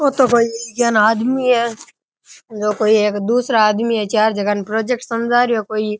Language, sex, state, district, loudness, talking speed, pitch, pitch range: Rajasthani, male, Rajasthan, Nagaur, -16 LUFS, 210 wpm, 230 Hz, 215-240 Hz